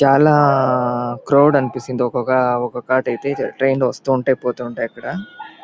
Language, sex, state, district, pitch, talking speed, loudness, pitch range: Telugu, male, Andhra Pradesh, Anantapur, 130 Hz, 105 wpm, -17 LUFS, 125-140 Hz